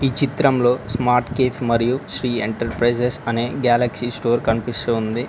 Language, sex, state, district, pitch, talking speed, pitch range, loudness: Telugu, male, Telangana, Mahabubabad, 120 Hz, 125 wpm, 115-125 Hz, -20 LUFS